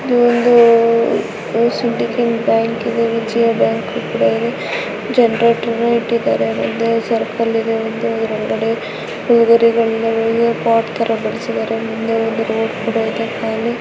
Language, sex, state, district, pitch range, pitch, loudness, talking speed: Kannada, female, Karnataka, Dakshina Kannada, 225-235 Hz, 230 Hz, -16 LUFS, 105 wpm